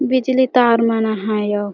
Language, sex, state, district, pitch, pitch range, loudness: Chhattisgarhi, female, Chhattisgarh, Jashpur, 230 Hz, 210-255 Hz, -16 LUFS